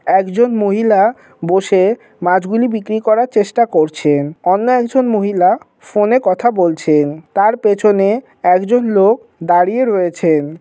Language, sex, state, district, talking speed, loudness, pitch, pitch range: Bengali, male, West Bengal, Jalpaiguri, 120 wpm, -14 LUFS, 200 Hz, 175-225 Hz